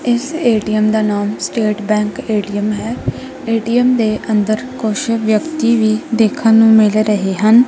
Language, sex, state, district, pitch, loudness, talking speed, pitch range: Punjabi, female, Punjab, Kapurthala, 220 Hz, -15 LUFS, 150 wpm, 215-235 Hz